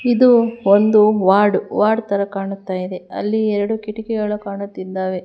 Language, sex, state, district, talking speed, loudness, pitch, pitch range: Kannada, female, Karnataka, Bangalore, 125 wpm, -17 LUFS, 205 Hz, 195-220 Hz